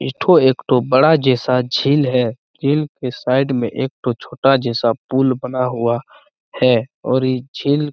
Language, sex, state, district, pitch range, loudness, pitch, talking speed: Hindi, male, Chhattisgarh, Bastar, 125-140 Hz, -17 LUFS, 130 Hz, 165 wpm